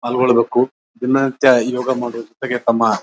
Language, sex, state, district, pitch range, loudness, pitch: Kannada, male, Karnataka, Bijapur, 120-130 Hz, -17 LUFS, 125 Hz